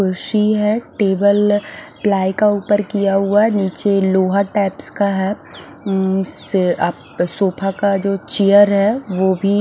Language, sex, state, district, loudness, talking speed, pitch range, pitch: Hindi, male, Punjab, Fazilka, -16 LUFS, 150 wpm, 190-205 Hz, 200 Hz